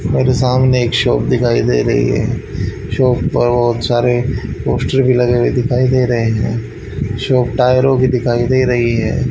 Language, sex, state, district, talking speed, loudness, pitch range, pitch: Hindi, male, Haryana, Rohtak, 175 wpm, -14 LUFS, 115-130 Hz, 120 Hz